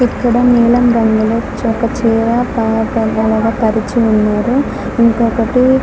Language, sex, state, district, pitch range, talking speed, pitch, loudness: Telugu, female, Andhra Pradesh, Guntur, 220-240 Hz, 80 wpm, 230 Hz, -13 LUFS